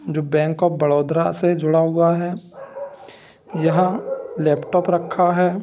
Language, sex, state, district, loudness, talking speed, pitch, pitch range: Hindi, male, Bihar, Gopalganj, -19 LUFS, 140 wpm, 175 Hz, 160-185 Hz